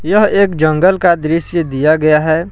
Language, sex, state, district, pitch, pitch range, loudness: Hindi, male, Jharkhand, Palamu, 165 Hz, 155-185 Hz, -12 LUFS